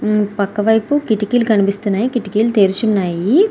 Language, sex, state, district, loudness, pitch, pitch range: Telugu, female, Andhra Pradesh, Srikakulam, -16 LUFS, 210 Hz, 200-230 Hz